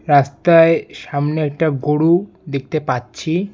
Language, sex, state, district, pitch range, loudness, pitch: Bengali, male, West Bengal, Alipurduar, 140-165 Hz, -17 LUFS, 155 Hz